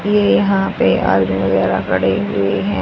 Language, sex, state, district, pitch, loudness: Hindi, female, Haryana, Charkhi Dadri, 100 Hz, -15 LUFS